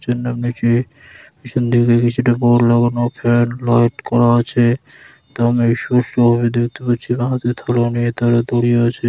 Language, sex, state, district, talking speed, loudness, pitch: Bengali, male, West Bengal, Dakshin Dinajpur, 125 wpm, -16 LUFS, 120 Hz